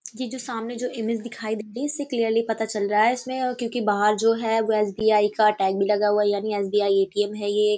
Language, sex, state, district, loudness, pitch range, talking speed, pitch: Hindi, female, Uttar Pradesh, Hamirpur, -23 LUFS, 210-230 Hz, 240 wpm, 215 Hz